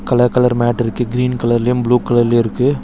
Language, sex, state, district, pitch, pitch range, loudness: Tamil, male, Tamil Nadu, Chennai, 120 Hz, 120-125 Hz, -15 LUFS